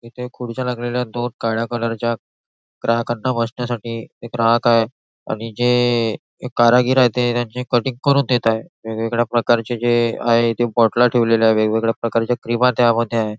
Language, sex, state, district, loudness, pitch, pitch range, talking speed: Marathi, male, Maharashtra, Nagpur, -18 LUFS, 120 Hz, 115-125 Hz, 155 wpm